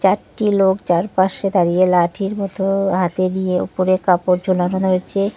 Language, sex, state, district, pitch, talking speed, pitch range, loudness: Bengali, female, West Bengal, Cooch Behar, 185 Hz, 135 wpm, 180-195 Hz, -17 LUFS